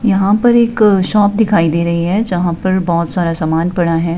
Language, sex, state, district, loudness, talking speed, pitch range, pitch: Hindi, female, Himachal Pradesh, Shimla, -13 LUFS, 200 wpm, 170-210 Hz, 180 Hz